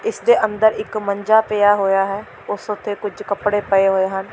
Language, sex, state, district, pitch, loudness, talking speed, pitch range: Punjabi, female, Delhi, New Delhi, 205 Hz, -18 LUFS, 210 wpm, 195-215 Hz